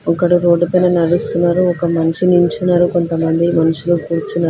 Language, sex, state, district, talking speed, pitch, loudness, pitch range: Telugu, female, Telangana, Hyderabad, 135 wpm, 175 Hz, -14 LUFS, 165-175 Hz